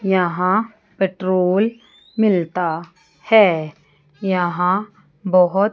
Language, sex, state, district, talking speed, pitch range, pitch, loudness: Hindi, female, Chandigarh, Chandigarh, 65 wpm, 175-205 Hz, 185 Hz, -18 LUFS